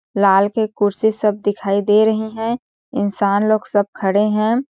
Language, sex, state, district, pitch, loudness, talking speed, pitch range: Hindi, female, Chhattisgarh, Sarguja, 210 Hz, -17 LUFS, 165 wpm, 200-220 Hz